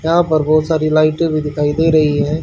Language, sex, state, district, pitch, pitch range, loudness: Hindi, male, Haryana, Charkhi Dadri, 155 Hz, 150-160 Hz, -14 LUFS